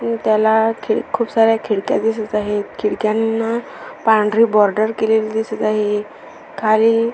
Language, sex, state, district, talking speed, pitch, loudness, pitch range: Marathi, female, Maharashtra, Sindhudurg, 125 wpm, 220 Hz, -17 LUFS, 215-225 Hz